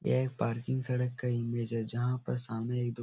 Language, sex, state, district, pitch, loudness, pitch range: Hindi, male, Uttar Pradesh, Etah, 120 Hz, -33 LUFS, 115-125 Hz